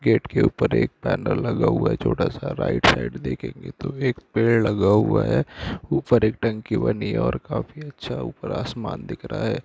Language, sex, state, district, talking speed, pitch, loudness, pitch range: Hindi, male, Jharkhand, Jamtara, 200 wpm, 110 Hz, -23 LUFS, 95-120 Hz